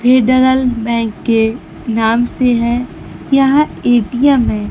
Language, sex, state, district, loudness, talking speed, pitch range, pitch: Hindi, female, Bihar, Kaimur, -13 LUFS, 100 wpm, 230-260 Hz, 245 Hz